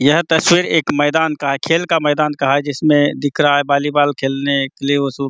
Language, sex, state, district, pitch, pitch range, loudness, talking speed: Hindi, male, Chhattisgarh, Bastar, 145 Hz, 140-155 Hz, -15 LUFS, 250 wpm